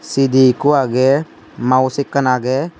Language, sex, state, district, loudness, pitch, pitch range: Chakma, male, Tripura, Unakoti, -15 LUFS, 130 Hz, 130-140 Hz